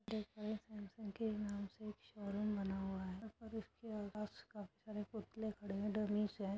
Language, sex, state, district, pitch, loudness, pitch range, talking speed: Hindi, female, Uttar Pradesh, Etah, 210 Hz, -46 LUFS, 205-215 Hz, 210 wpm